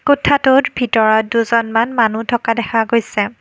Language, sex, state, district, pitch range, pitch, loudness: Assamese, female, Assam, Kamrup Metropolitan, 225-245 Hz, 230 Hz, -15 LUFS